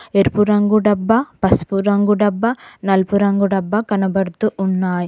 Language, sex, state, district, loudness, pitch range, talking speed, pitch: Telugu, female, Telangana, Mahabubabad, -17 LUFS, 195-210 Hz, 130 wpm, 200 Hz